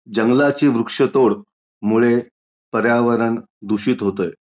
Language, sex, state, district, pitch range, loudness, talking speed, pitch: Marathi, male, Maharashtra, Pune, 110-120 Hz, -18 LUFS, 80 wpm, 115 Hz